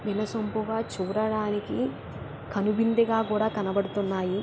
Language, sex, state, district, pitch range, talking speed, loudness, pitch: Telugu, female, Andhra Pradesh, Krishna, 195-220 Hz, 70 wpm, -27 LUFS, 210 Hz